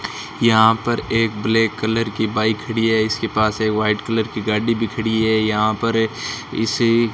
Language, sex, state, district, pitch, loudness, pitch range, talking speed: Hindi, male, Rajasthan, Bikaner, 110 Hz, -19 LUFS, 110-115 Hz, 200 wpm